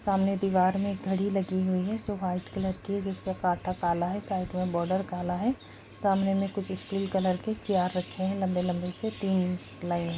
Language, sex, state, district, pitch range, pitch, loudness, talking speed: Hindi, female, Bihar, Kishanganj, 180-195 Hz, 190 Hz, -30 LUFS, 210 wpm